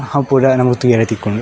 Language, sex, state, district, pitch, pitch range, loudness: Tulu, male, Karnataka, Dakshina Kannada, 125 Hz, 115-135 Hz, -13 LUFS